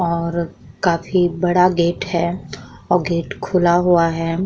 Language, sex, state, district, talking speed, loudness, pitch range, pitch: Hindi, female, Uttar Pradesh, Muzaffarnagar, 120 wpm, -18 LUFS, 170-175 Hz, 170 Hz